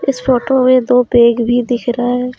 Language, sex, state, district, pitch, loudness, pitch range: Hindi, female, Jharkhand, Deoghar, 245 Hz, -13 LUFS, 245-255 Hz